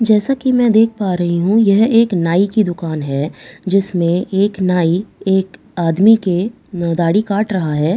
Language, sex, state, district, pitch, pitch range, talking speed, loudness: Hindi, female, Bihar, Katihar, 190 Hz, 175-215 Hz, 175 wpm, -15 LUFS